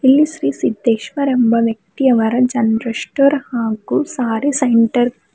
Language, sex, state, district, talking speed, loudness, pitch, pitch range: Kannada, female, Karnataka, Bidar, 125 wpm, -16 LUFS, 240 Hz, 225-275 Hz